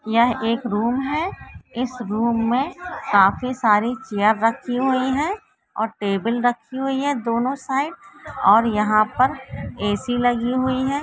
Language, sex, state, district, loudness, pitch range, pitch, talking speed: Hindi, female, Maharashtra, Solapur, -21 LUFS, 225-265 Hz, 245 Hz, 145 wpm